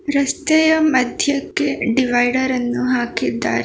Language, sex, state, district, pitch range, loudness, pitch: Kannada, female, Karnataka, Bangalore, 250-290 Hz, -17 LUFS, 260 Hz